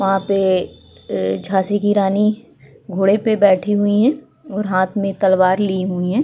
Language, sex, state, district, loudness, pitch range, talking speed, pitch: Hindi, female, Uttarakhand, Tehri Garhwal, -17 LUFS, 185-205 Hz, 175 wpm, 195 Hz